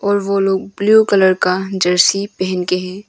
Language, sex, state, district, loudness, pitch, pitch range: Hindi, female, Arunachal Pradesh, Longding, -15 LUFS, 195 Hz, 185-200 Hz